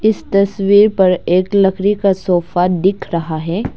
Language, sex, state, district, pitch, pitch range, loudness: Hindi, female, Arunachal Pradesh, Lower Dibang Valley, 190 Hz, 180-200 Hz, -14 LUFS